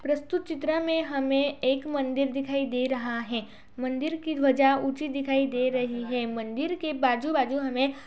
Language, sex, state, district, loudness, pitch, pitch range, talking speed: Hindi, female, Uttar Pradesh, Budaun, -27 LUFS, 275 Hz, 255-295 Hz, 185 wpm